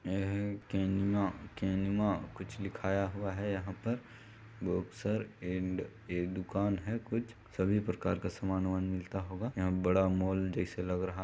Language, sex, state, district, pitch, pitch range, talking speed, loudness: Hindi, male, Chhattisgarh, Balrampur, 95 Hz, 95-105 Hz, 160 wpm, -35 LUFS